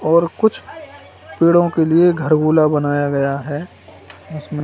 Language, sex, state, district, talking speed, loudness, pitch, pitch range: Hindi, male, Uttar Pradesh, Lalitpur, 130 wpm, -16 LUFS, 155 Hz, 145-165 Hz